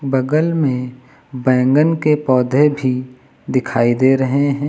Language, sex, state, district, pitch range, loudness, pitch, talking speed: Hindi, male, Uttar Pradesh, Lucknow, 130-145 Hz, -16 LUFS, 130 Hz, 125 wpm